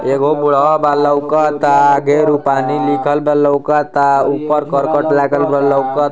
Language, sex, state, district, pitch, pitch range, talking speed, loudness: Bhojpuri, male, Uttar Pradesh, Ghazipur, 145 Hz, 140-150 Hz, 115 wpm, -13 LUFS